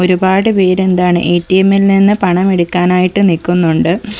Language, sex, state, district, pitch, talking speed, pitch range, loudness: Malayalam, female, Kerala, Kollam, 185 Hz, 115 wpm, 180-195 Hz, -11 LUFS